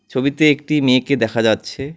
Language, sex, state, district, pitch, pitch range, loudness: Bengali, male, West Bengal, Alipurduar, 135 Hz, 125-145 Hz, -16 LUFS